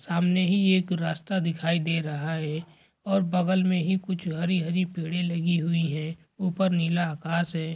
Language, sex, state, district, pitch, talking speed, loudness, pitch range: Hindi, male, Chhattisgarh, Rajnandgaon, 170 Hz, 180 wpm, -26 LUFS, 165-185 Hz